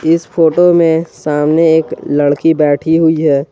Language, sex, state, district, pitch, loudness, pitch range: Hindi, male, Jharkhand, Garhwa, 160 Hz, -11 LUFS, 150-165 Hz